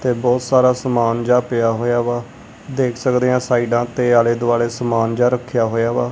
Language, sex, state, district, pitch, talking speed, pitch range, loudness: Punjabi, male, Punjab, Kapurthala, 120 Hz, 195 wpm, 115-125 Hz, -17 LUFS